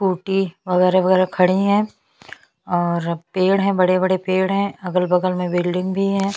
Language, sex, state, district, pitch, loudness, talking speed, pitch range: Hindi, female, Chhattisgarh, Bastar, 185 Hz, -19 LUFS, 180 wpm, 180-195 Hz